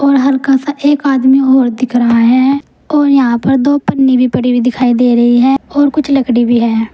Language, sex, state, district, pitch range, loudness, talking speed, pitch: Hindi, female, Uttar Pradesh, Saharanpur, 240-275 Hz, -10 LUFS, 215 wpm, 265 Hz